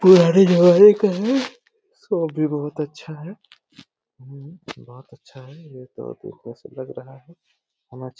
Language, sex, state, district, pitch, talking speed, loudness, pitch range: Hindi, male, Uttar Pradesh, Deoria, 160 Hz, 160 wpm, -16 LUFS, 135-195 Hz